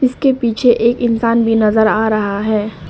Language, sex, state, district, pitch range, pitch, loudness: Hindi, female, Arunachal Pradesh, Papum Pare, 215-240 Hz, 225 Hz, -14 LUFS